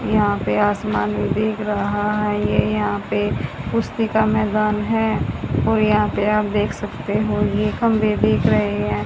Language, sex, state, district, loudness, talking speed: Hindi, female, Haryana, Charkhi Dadri, -20 LUFS, 165 wpm